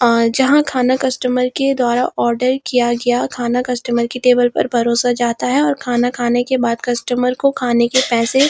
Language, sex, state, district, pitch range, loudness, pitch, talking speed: Hindi, female, Uttarakhand, Uttarkashi, 240-255 Hz, -16 LUFS, 245 Hz, 200 wpm